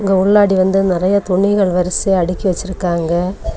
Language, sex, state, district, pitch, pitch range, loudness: Tamil, female, Tamil Nadu, Kanyakumari, 190 Hz, 180-195 Hz, -15 LUFS